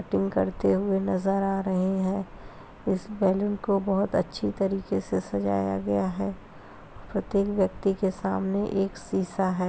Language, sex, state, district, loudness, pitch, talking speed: Hindi, female, Uttar Pradesh, Hamirpur, -27 LUFS, 190 Hz, 140 wpm